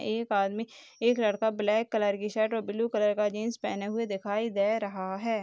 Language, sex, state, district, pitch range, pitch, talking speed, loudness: Hindi, female, Bihar, Darbhanga, 205-225 Hz, 215 Hz, 210 wpm, -29 LUFS